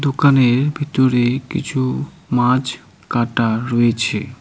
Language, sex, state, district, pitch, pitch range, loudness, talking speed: Bengali, male, West Bengal, Cooch Behar, 125 Hz, 120-140 Hz, -17 LUFS, 80 wpm